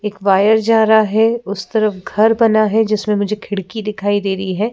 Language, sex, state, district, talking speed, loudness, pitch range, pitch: Hindi, female, Madhya Pradesh, Bhopal, 215 wpm, -15 LUFS, 200-220 Hz, 215 Hz